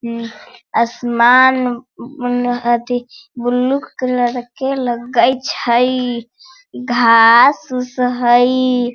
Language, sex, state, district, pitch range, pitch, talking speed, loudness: Hindi, female, Bihar, Sitamarhi, 240-255 Hz, 245 Hz, 75 wpm, -14 LUFS